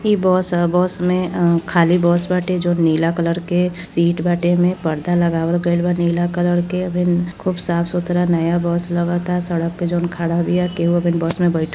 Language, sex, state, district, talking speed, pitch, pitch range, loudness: Bhojpuri, female, Uttar Pradesh, Deoria, 205 wpm, 175 Hz, 170-180 Hz, -18 LUFS